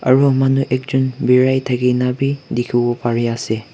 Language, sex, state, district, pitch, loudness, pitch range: Nagamese, male, Nagaland, Kohima, 125 Hz, -17 LUFS, 120-135 Hz